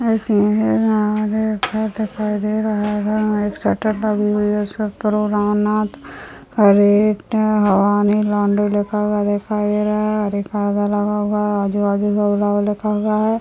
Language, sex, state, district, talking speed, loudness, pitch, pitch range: Hindi, male, Chhattisgarh, Raigarh, 120 wpm, -18 LUFS, 210 Hz, 205-215 Hz